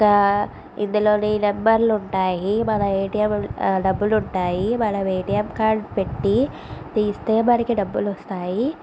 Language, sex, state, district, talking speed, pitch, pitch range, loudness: Telugu, female, Andhra Pradesh, Visakhapatnam, 115 wpm, 210 Hz, 195-220 Hz, -21 LUFS